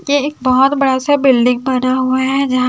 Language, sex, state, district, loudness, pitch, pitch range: Hindi, female, Haryana, Charkhi Dadri, -14 LUFS, 260 Hz, 255-275 Hz